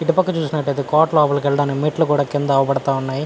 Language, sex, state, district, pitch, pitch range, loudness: Telugu, male, Andhra Pradesh, Anantapur, 145 Hz, 140-155 Hz, -18 LUFS